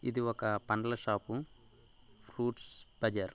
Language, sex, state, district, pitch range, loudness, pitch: Telugu, male, Andhra Pradesh, Guntur, 110-120 Hz, -36 LUFS, 115 Hz